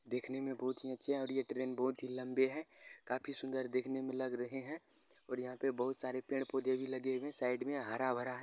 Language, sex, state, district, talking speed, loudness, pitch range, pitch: Hindi, male, Bihar, Araria, 240 wpm, -39 LUFS, 130-135 Hz, 130 Hz